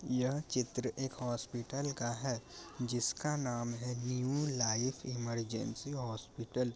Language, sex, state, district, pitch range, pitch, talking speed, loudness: Hindi, male, Bihar, Muzaffarpur, 120-135 Hz, 125 Hz, 125 wpm, -38 LUFS